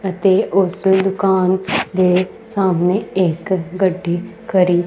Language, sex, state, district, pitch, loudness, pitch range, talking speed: Punjabi, female, Punjab, Kapurthala, 190 Hz, -17 LUFS, 180-195 Hz, 100 wpm